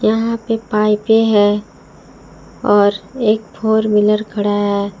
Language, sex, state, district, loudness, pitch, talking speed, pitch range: Hindi, female, Jharkhand, Palamu, -15 LUFS, 210 Hz, 120 wpm, 205-220 Hz